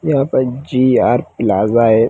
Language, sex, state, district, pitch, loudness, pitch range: Hindi, male, Bihar, Begusarai, 125 Hz, -14 LUFS, 110-130 Hz